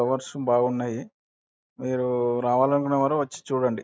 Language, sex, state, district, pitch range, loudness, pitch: Telugu, male, Andhra Pradesh, Anantapur, 120-135 Hz, -25 LUFS, 130 Hz